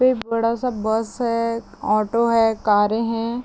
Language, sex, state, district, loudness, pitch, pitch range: Hindi, female, Chhattisgarh, Raigarh, -20 LUFS, 230 Hz, 220-230 Hz